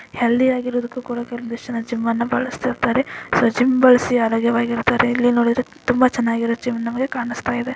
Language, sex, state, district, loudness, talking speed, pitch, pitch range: Kannada, female, Karnataka, Dakshina Kannada, -19 LUFS, 155 wpm, 240 Hz, 235-250 Hz